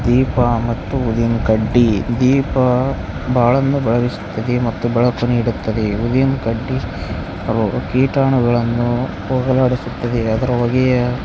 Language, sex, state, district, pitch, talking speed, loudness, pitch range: Kannada, male, Karnataka, Bellary, 120 Hz, 80 wpm, -17 LUFS, 115-130 Hz